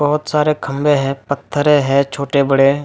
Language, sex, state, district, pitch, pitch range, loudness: Hindi, male, Jharkhand, Jamtara, 140 Hz, 140-150 Hz, -16 LUFS